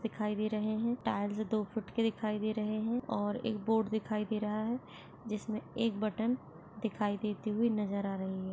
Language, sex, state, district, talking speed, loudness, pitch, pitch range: Hindi, female, Chhattisgarh, Jashpur, 205 wpm, -35 LUFS, 215 Hz, 210-225 Hz